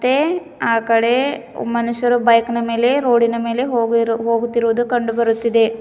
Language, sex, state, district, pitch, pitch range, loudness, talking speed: Kannada, female, Karnataka, Bidar, 235 Hz, 230-245 Hz, -17 LUFS, 125 wpm